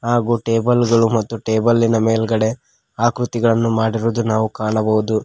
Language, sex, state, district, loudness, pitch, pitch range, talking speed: Kannada, male, Karnataka, Koppal, -17 LUFS, 115 Hz, 110-115 Hz, 115 wpm